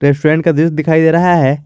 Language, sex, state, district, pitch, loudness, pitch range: Hindi, male, Jharkhand, Garhwa, 160 Hz, -11 LUFS, 150-165 Hz